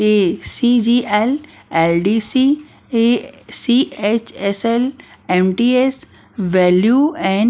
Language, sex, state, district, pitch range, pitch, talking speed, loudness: Hindi, female, Bihar, Patna, 200-255 Hz, 230 Hz, 80 wpm, -16 LUFS